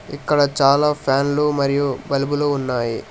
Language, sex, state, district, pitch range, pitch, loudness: Telugu, male, Telangana, Hyderabad, 135-145 Hz, 140 Hz, -19 LUFS